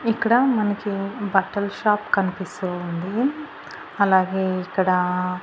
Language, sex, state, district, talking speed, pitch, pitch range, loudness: Telugu, female, Andhra Pradesh, Annamaya, 90 wpm, 195 Hz, 185-210 Hz, -22 LUFS